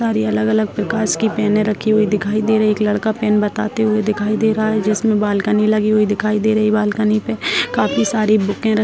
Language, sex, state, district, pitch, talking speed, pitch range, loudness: Hindi, female, Bihar, Sitamarhi, 215 Hz, 230 wpm, 210-220 Hz, -16 LUFS